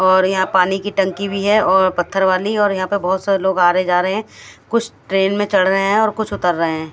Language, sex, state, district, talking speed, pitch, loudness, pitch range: Hindi, female, Odisha, Khordha, 275 wpm, 190 Hz, -16 LUFS, 185-205 Hz